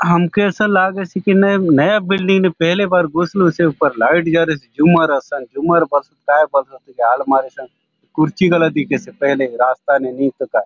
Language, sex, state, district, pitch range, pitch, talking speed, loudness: Halbi, male, Chhattisgarh, Bastar, 140-185 Hz, 165 Hz, 185 wpm, -15 LUFS